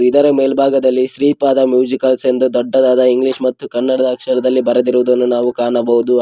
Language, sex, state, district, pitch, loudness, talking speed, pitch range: Kannada, male, Karnataka, Koppal, 130 Hz, -14 LUFS, 125 wpm, 125-130 Hz